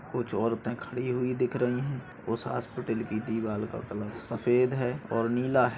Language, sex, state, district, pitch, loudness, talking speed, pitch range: Hindi, male, Maharashtra, Nagpur, 125 Hz, -30 LUFS, 185 wpm, 115-125 Hz